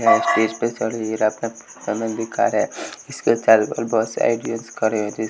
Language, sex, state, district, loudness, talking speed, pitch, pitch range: Hindi, male, Bihar, West Champaran, -21 LUFS, 145 wpm, 110 Hz, 110-115 Hz